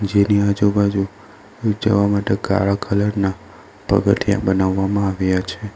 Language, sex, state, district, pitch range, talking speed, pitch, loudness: Gujarati, male, Gujarat, Valsad, 100-105 Hz, 115 wpm, 100 Hz, -18 LUFS